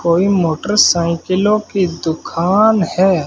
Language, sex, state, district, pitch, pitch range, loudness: Hindi, male, Rajasthan, Bikaner, 185 Hz, 170-200 Hz, -14 LUFS